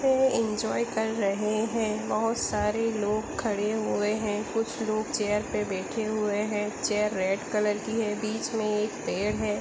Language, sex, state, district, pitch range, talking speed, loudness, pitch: Hindi, female, Jharkhand, Sahebganj, 210-220 Hz, 180 wpm, -28 LUFS, 215 Hz